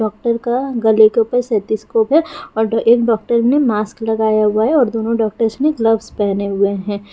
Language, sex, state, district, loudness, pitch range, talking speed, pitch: Hindi, female, Bihar, Jahanabad, -16 LUFS, 215-235 Hz, 195 wpm, 225 Hz